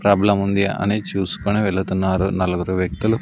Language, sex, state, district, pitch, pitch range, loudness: Telugu, male, Andhra Pradesh, Sri Satya Sai, 100 Hz, 95-100 Hz, -20 LUFS